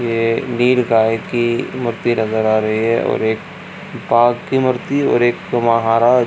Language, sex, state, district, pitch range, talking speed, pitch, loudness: Hindi, male, Bihar, Jamui, 115-120 Hz, 155 wpm, 120 Hz, -16 LUFS